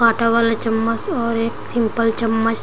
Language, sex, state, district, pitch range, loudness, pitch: Hindi, female, Chhattisgarh, Raigarh, 225-230 Hz, -19 LUFS, 230 Hz